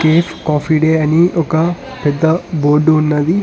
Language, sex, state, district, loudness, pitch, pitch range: Telugu, male, Telangana, Hyderabad, -14 LUFS, 160 Hz, 150-165 Hz